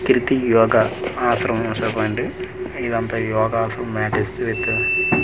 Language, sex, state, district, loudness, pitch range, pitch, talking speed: Telugu, male, Andhra Pradesh, Manyam, -20 LUFS, 110-120 Hz, 115 Hz, 115 wpm